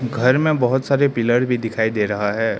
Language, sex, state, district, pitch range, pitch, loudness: Hindi, male, Arunachal Pradesh, Lower Dibang Valley, 110-130 Hz, 120 Hz, -18 LUFS